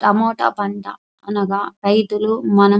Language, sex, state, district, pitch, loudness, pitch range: Telugu, female, Andhra Pradesh, Anantapur, 205 Hz, -18 LUFS, 200-210 Hz